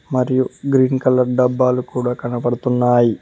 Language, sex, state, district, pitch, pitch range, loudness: Telugu, male, Telangana, Mahabubabad, 125 Hz, 125-130 Hz, -17 LUFS